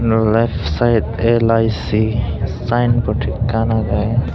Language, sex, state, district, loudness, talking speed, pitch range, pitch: Chakma, male, Tripura, Dhalai, -17 LUFS, 95 wpm, 110-115 Hz, 115 Hz